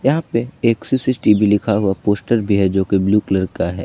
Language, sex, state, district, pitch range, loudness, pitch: Hindi, male, Jharkhand, Palamu, 95-115 Hz, -17 LUFS, 105 Hz